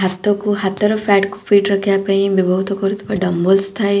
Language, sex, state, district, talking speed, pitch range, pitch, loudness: Odia, female, Odisha, Khordha, 165 wpm, 195-205 Hz, 200 Hz, -16 LUFS